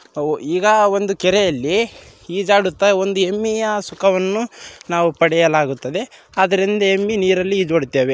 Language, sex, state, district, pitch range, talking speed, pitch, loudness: Kannada, male, Karnataka, Raichur, 170-200 Hz, 110 wpm, 190 Hz, -17 LUFS